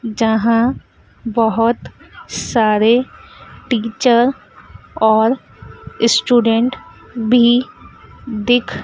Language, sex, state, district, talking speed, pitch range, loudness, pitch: Hindi, female, Madhya Pradesh, Dhar, 55 wpm, 225-245 Hz, -15 LUFS, 230 Hz